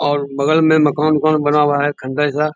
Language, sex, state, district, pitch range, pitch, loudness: Hindi, male, Bihar, Bhagalpur, 145-155 Hz, 150 Hz, -15 LUFS